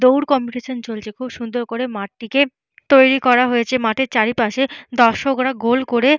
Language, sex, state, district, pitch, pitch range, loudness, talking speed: Bengali, female, West Bengal, Purulia, 250 Hz, 235-265 Hz, -17 LUFS, 145 wpm